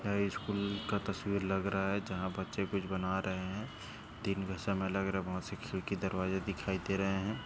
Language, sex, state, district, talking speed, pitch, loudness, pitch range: Hindi, male, Maharashtra, Dhule, 215 wpm, 95 Hz, -36 LUFS, 95-100 Hz